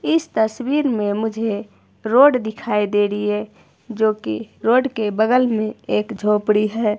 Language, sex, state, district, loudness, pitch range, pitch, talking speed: Hindi, female, Himachal Pradesh, Shimla, -19 LUFS, 210-235 Hz, 220 Hz, 155 wpm